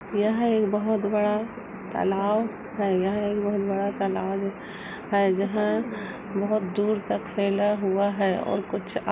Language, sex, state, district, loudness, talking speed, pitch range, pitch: Hindi, female, Uttar Pradesh, Jalaun, -26 LUFS, 150 wpm, 200-215 Hz, 205 Hz